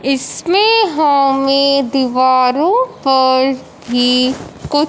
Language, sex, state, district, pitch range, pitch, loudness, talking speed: Hindi, male, Punjab, Fazilka, 260-300 Hz, 270 Hz, -13 LUFS, 75 wpm